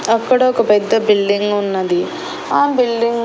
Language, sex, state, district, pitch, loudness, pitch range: Telugu, female, Andhra Pradesh, Annamaya, 225 Hz, -15 LUFS, 205-235 Hz